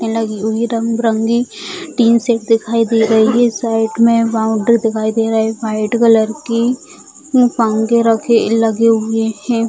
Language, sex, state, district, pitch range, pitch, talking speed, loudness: Hindi, female, Bihar, Jamui, 220-235 Hz, 225 Hz, 160 wpm, -14 LUFS